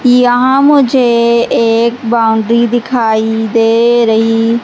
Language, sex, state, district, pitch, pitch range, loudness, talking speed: Hindi, female, Madhya Pradesh, Umaria, 235 Hz, 225-245 Hz, -10 LUFS, 90 wpm